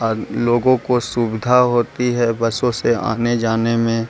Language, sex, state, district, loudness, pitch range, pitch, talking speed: Hindi, male, Bihar, Gaya, -17 LUFS, 115-120 Hz, 120 Hz, 145 wpm